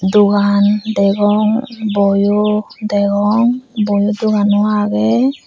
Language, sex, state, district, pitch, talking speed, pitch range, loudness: Chakma, female, Tripura, Unakoti, 205 Hz, 75 wpm, 205-215 Hz, -14 LUFS